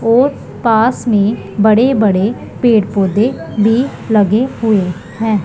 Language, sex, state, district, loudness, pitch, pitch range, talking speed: Hindi, female, Punjab, Pathankot, -13 LUFS, 220 Hz, 205-235 Hz, 120 wpm